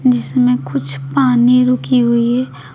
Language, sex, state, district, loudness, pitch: Hindi, female, Uttar Pradesh, Shamli, -14 LUFS, 190 Hz